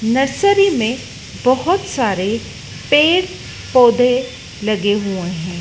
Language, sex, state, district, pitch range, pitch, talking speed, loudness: Hindi, female, Madhya Pradesh, Dhar, 205-285 Hz, 245 Hz, 95 wpm, -16 LUFS